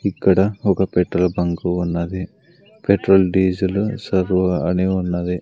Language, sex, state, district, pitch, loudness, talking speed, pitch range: Telugu, male, Andhra Pradesh, Sri Satya Sai, 95 Hz, -19 LUFS, 110 wpm, 90-95 Hz